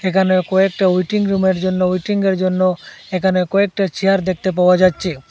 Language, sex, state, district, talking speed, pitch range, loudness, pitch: Bengali, male, Assam, Hailakandi, 135 wpm, 185-195 Hz, -16 LUFS, 185 Hz